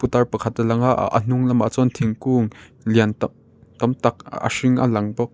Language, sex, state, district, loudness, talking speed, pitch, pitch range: Mizo, male, Mizoram, Aizawl, -20 LUFS, 215 wpm, 120 Hz, 115-125 Hz